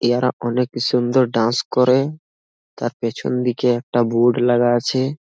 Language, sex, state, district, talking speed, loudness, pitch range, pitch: Bengali, male, West Bengal, Malda, 135 wpm, -19 LUFS, 120-125 Hz, 120 Hz